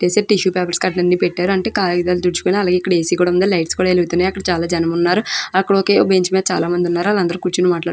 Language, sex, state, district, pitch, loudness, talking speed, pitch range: Telugu, female, Andhra Pradesh, Krishna, 180 Hz, -16 LUFS, 195 wpm, 175-190 Hz